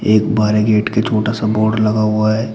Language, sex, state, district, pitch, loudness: Hindi, male, Uttar Pradesh, Shamli, 110 Hz, -15 LUFS